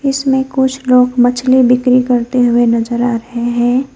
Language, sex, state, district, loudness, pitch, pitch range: Hindi, female, West Bengal, Alipurduar, -12 LUFS, 250 Hz, 240-260 Hz